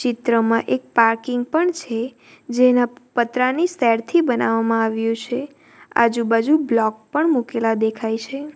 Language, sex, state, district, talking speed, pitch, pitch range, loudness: Gujarati, female, Gujarat, Valsad, 120 wpm, 235 Hz, 225-265 Hz, -19 LUFS